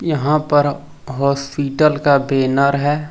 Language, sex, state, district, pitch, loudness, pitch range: Hindi, male, Jharkhand, Deoghar, 145 Hz, -16 LUFS, 140-150 Hz